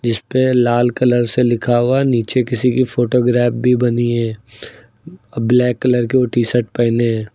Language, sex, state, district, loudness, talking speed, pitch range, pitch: Hindi, male, Uttar Pradesh, Lucknow, -15 LUFS, 170 wpm, 120-125 Hz, 120 Hz